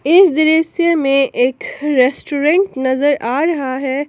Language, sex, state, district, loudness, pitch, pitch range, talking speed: Hindi, female, Jharkhand, Palamu, -15 LUFS, 285 Hz, 265-320 Hz, 130 wpm